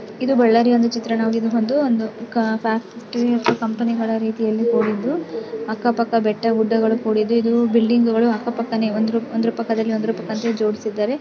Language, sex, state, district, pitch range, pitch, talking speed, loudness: Kannada, female, Karnataka, Bellary, 220-235 Hz, 230 Hz, 145 wpm, -19 LUFS